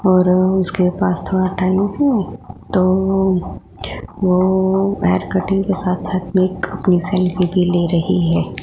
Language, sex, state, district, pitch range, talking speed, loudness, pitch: Hindi, female, Gujarat, Gandhinagar, 180-190 Hz, 165 wpm, -17 LUFS, 185 Hz